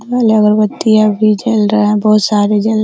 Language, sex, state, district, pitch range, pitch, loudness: Hindi, female, Bihar, Araria, 210-220 Hz, 215 Hz, -11 LUFS